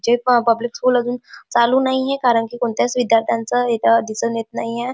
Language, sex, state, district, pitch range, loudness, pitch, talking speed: Marathi, female, Maharashtra, Chandrapur, 230-250 Hz, -18 LUFS, 240 Hz, 180 wpm